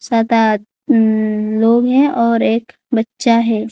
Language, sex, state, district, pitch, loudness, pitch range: Hindi, female, Odisha, Khordha, 230 Hz, -14 LUFS, 220-240 Hz